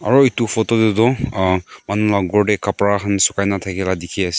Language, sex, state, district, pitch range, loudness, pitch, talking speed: Nagamese, male, Nagaland, Kohima, 95-110 Hz, -17 LUFS, 100 Hz, 220 wpm